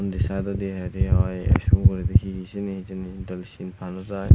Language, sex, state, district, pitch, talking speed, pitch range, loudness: Chakma, male, Tripura, Unakoti, 95 Hz, 165 wpm, 95-100 Hz, -24 LUFS